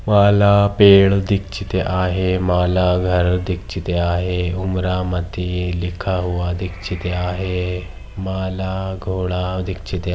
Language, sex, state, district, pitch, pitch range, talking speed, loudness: Hindi, female, Maharashtra, Pune, 90 Hz, 90-95 Hz, 105 wpm, -19 LUFS